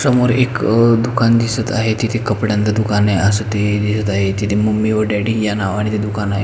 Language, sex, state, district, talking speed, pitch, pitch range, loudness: Marathi, male, Maharashtra, Pune, 205 wpm, 105 Hz, 105-115 Hz, -16 LUFS